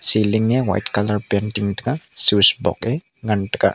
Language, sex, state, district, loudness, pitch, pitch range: Wancho, male, Arunachal Pradesh, Longding, -19 LUFS, 105 Hz, 100-115 Hz